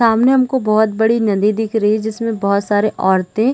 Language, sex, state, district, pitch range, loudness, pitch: Hindi, female, Chhattisgarh, Raigarh, 210-230 Hz, -15 LUFS, 220 Hz